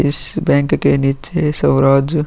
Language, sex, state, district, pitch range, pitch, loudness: Hindi, male, Bihar, Vaishali, 135-150 Hz, 140 Hz, -14 LUFS